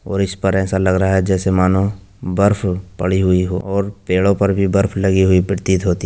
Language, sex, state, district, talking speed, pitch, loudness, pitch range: Hindi, male, Uttar Pradesh, Jyotiba Phule Nagar, 225 wpm, 95 Hz, -16 LUFS, 95-100 Hz